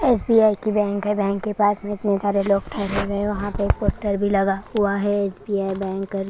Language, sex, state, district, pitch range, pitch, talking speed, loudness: Hindi, female, Maharashtra, Washim, 200-210 Hz, 200 Hz, 230 wpm, -22 LUFS